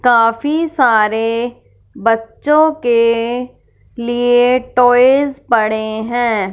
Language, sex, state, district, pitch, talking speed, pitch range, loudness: Hindi, female, Punjab, Fazilka, 240 Hz, 75 wpm, 225-250 Hz, -14 LUFS